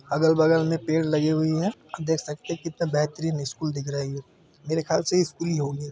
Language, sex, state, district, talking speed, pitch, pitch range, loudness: Hindi, male, Chhattisgarh, Bilaspur, 230 wpm, 160 Hz, 150-165 Hz, -25 LUFS